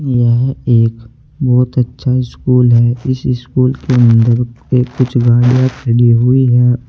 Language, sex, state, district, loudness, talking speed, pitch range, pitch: Hindi, male, Uttar Pradesh, Saharanpur, -12 LUFS, 150 wpm, 120-130 Hz, 125 Hz